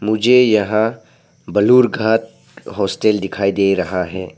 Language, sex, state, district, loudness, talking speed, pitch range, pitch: Hindi, male, Arunachal Pradesh, Papum Pare, -16 LUFS, 110 wpm, 95-110 Hz, 105 Hz